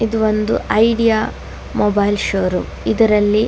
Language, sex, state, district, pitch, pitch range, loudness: Kannada, female, Karnataka, Dakshina Kannada, 215 Hz, 205-225 Hz, -16 LUFS